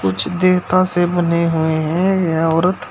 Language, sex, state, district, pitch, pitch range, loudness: Hindi, male, Uttar Pradesh, Shamli, 175 Hz, 160-180 Hz, -16 LUFS